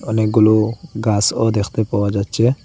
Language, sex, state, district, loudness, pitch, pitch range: Bengali, male, Assam, Hailakandi, -17 LUFS, 110 Hz, 105-115 Hz